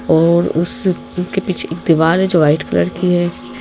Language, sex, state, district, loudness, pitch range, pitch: Hindi, female, Madhya Pradesh, Bhopal, -15 LUFS, 160-185 Hz, 175 Hz